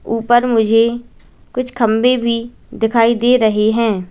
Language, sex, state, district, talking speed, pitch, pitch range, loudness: Hindi, female, Uttar Pradesh, Lalitpur, 130 wpm, 230 Hz, 225-240 Hz, -14 LUFS